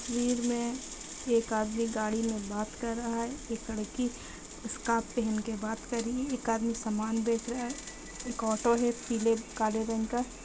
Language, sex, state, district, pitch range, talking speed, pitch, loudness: Hindi, female, Bihar, Kishanganj, 225-240 Hz, 185 wpm, 230 Hz, -32 LUFS